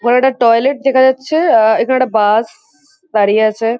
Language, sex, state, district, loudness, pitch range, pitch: Bengali, female, West Bengal, Kolkata, -12 LUFS, 220-270 Hz, 255 Hz